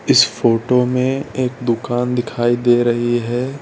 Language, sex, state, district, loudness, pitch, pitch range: Hindi, male, Gujarat, Valsad, -17 LUFS, 120 Hz, 120-125 Hz